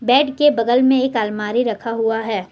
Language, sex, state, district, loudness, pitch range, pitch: Hindi, female, Jharkhand, Deoghar, -17 LUFS, 220-260 Hz, 230 Hz